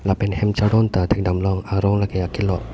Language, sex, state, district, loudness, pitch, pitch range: Karbi, male, Assam, Karbi Anglong, -20 LUFS, 100 Hz, 95-105 Hz